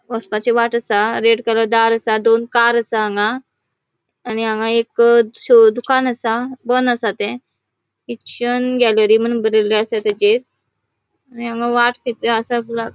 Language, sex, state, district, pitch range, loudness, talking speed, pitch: Konkani, female, Goa, North and South Goa, 220-240 Hz, -16 LUFS, 150 wpm, 230 Hz